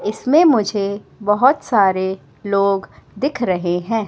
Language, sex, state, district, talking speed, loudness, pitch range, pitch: Hindi, female, Madhya Pradesh, Katni, 120 wpm, -17 LUFS, 190-230 Hz, 200 Hz